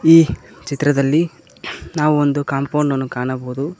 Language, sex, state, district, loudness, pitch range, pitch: Kannada, male, Karnataka, Koppal, -18 LUFS, 135-150 Hz, 145 Hz